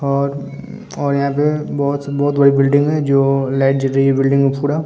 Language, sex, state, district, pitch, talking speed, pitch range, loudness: Hindi, male, Bihar, Vaishali, 140 Hz, 210 wpm, 135-145 Hz, -16 LUFS